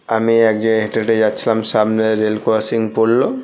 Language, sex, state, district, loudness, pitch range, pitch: Bengali, male, West Bengal, North 24 Parganas, -16 LUFS, 110-115 Hz, 110 Hz